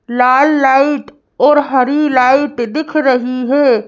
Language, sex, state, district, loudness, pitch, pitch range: Hindi, female, Madhya Pradesh, Bhopal, -12 LUFS, 265 Hz, 250-290 Hz